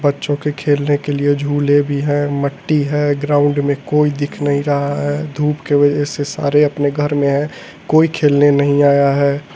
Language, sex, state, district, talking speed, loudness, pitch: Hindi, male, Delhi, New Delhi, 195 wpm, -15 LUFS, 145 Hz